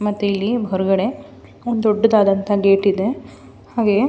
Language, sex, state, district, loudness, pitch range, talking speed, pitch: Kannada, female, Karnataka, Mysore, -18 LUFS, 195-225 Hz, 130 wpm, 205 Hz